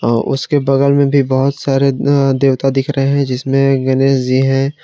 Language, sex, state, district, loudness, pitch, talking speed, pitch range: Hindi, male, Jharkhand, Palamu, -13 LUFS, 135 Hz, 185 wpm, 135-140 Hz